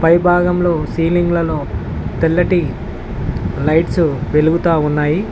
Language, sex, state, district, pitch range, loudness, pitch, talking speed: Telugu, male, Telangana, Mahabubabad, 155-175 Hz, -16 LUFS, 165 Hz, 80 wpm